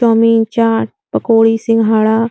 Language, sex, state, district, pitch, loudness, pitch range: Hindi, female, Uttar Pradesh, Etah, 225 Hz, -12 LUFS, 220-230 Hz